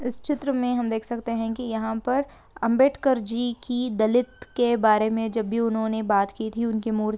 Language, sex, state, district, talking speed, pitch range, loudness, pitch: Hindi, female, Uttar Pradesh, Jyotiba Phule Nagar, 215 wpm, 220-245 Hz, -24 LUFS, 230 Hz